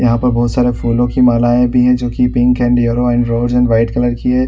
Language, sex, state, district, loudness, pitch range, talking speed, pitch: Hindi, male, Chhattisgarh, Raigarh, -13 LUFS, 120-125 Hz, 280 wpm, 120 Hz